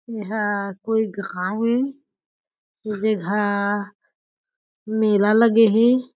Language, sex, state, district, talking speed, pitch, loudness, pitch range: Chhattisgarhi, female, Chhattisgarh, Jashpur, 90 wpm, 215 Hz, -21 LUFS, 205-230 Hz